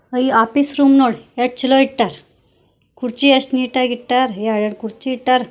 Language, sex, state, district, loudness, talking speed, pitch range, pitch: Kannada, female, Karnataka, Koppal, -16 LUFS, 175 wpm, 235-265 Hz, 255 Hz